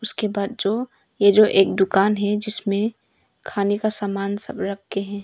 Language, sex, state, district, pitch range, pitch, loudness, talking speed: Hindi, female, Arunachal Pradesh, Longding, 200-215 Hz, 205 Hz, -21 LUFS, 170 wpm